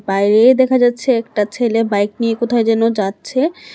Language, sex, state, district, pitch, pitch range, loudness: Bengali, female, Tripura, West Tripura, 230 Hz, 210-250 Hz, -15 LUFS